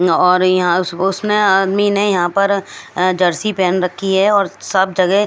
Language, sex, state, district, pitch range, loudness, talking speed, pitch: Hindi, female, Maharashtra, Gondia, 185-200 Hz, -15 LUFS, 170 wpm, 190 Hz